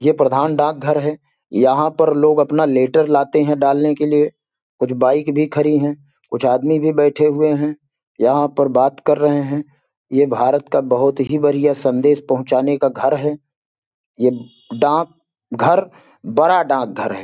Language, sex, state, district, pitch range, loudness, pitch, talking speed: Hindi, male, Bihar, Sitamarhi, 135-150 Hz, -16 LUFS, 145 Hz, 165 wpm